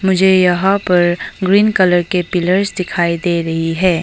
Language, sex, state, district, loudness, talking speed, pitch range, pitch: Hindi, female, Arunachal Pradesh, Longding, -14 LUFS, 165 wpm, 175-190 Hz, 180 Hz